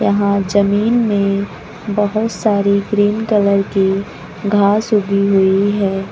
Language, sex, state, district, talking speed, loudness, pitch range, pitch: Hindi, female, Uttar Pradesh, Lucknow, 120 wpm, -15 LUFS, 200-210 Hz, 200 Hz